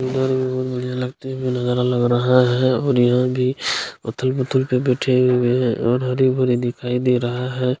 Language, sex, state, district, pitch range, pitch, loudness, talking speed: Hindi, male, Bihar, Jahanabad, 125-130 Hz, 125 Hz, -19 LUFS, 185 wpm